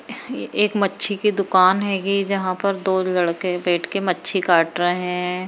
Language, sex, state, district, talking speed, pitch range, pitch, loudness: Hindi, female, Bihar, Kishanganj, 185 wpm, 180-200 Hz, 190 Hz, -20 LUFS